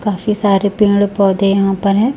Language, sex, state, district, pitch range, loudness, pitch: Hindi, female, Chhattisgarh, Raipur, 195-210 Hz, -14 LUFS, 200 Hz